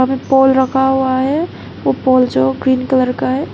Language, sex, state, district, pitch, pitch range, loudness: Hindi, female, Arunachal Pradesh, Papum Pare, 260 Hz, 255-265 Hz, -14 LUFS